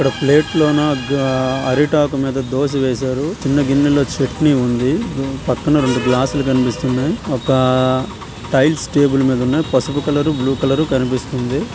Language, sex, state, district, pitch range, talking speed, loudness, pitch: Telugu, male, Andhra Pradesh, Visakhapatnam, 130-145 Hz, 135 wpm, -16 LUFS, 135 Hz